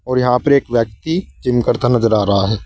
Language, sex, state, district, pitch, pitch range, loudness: Hindi, male, Uttar Pradesh, Saharanpur, 120 Hz, 110-130 Hz, -16 LUFS